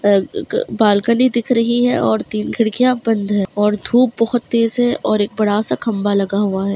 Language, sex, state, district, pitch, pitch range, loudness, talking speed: Hindi, female, Bihar, Madhepura, 215 Hz, 205-235 Hz, -16 LUFS, 195 wpm